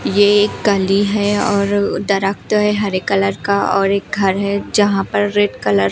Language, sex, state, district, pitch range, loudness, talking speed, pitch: Hindi, female, Himachal Pradesh, Shimla, 195-205 Hz, -16 LUFS, 195 wpm, 200 Hz